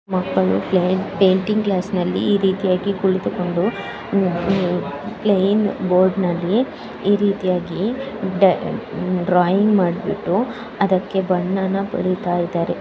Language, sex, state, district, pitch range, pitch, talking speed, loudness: Kannada, female, Karnataka, Bellary, 180-200 Hz, 190 Hz, 75 wpm, -19 LUFS